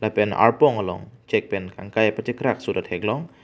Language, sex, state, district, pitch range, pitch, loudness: Karbi, male, Assam, Karbi Anglong, 100-120 Hz, 110 Hz, -22 LUFS